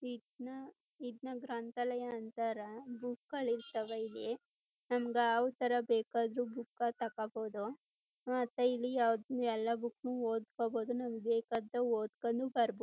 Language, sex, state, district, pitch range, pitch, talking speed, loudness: Kannada, female, Karnataka, Chamarajanagar, 230-245 Hz, 235 Hz, 120 wpm, -38 LUFS